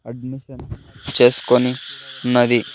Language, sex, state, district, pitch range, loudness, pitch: Telugu, male, Andhra Pradesh, Sri Satya Sai, 120-130 Hz, -17 LUFS, 125 Hz